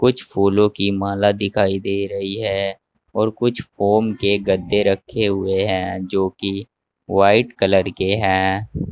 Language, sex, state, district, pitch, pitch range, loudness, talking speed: Hindi, male, Uttar Pradesh, Saharanpur, 100 Hz, 95-105 Hz, -19 LUFS, 140 wpm